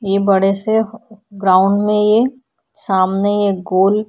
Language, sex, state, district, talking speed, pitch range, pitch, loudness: Hindi, female, Uttar Pradesh, Budaun, 145 wpm, 195-215 Hz, 200 Hz, -15 LUFS